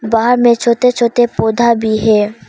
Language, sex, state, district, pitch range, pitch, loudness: Hindi, female, Arunachal Pradesh, Papum Pare, 220-240 Hz, 235 Hz, -12 LUFS